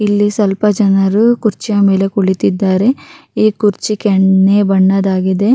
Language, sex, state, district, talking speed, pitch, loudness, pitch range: Kannada, female, Karnataka, Raichur, 95 wpm, 200 Hz, -12 LUFS, 195-210 Hz